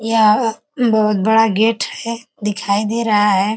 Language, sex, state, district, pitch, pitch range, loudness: Hindi, female, Uttar Pradesh, Ghazipur, 220 Hz, 210-230 Hz, -16 LUFS